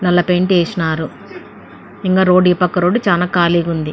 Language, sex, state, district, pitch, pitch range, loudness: Telugu, female, Andhra Pradesh, Anantapur, 180 Hz, 170-185 Hz, -14 LUFS